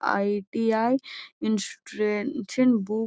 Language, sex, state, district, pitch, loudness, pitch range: Magahi, female, Bihar, Gaya, 220 Hz, -26 LUFS, 210-240 Hz